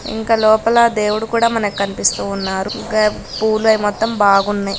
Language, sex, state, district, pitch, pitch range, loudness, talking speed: Telugu, female, Andhra Pradesh, Guntur, 215 Hz, 205-225 Hz, -16 LUFS, 125 wpm